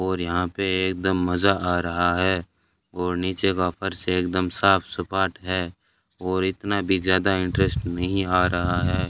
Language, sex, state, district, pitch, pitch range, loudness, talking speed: Hindi, male, Rajasthan, Bikaner, 90 Hz, 90-95 Hz, -23 LUFS, 165 wpm